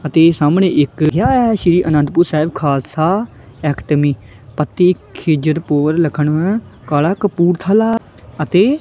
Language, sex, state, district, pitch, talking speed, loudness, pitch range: Punjabi, male, Punjab, Kapurthala, 155 Hz, 100 wpm, -15 LUFS, 145-180 Hz